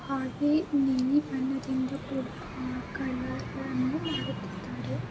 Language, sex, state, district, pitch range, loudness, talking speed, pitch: Kannada, female, Karnataka, Belgaum, 260-285 Hz, -31 LUFS, 70 wpm, 270 Hz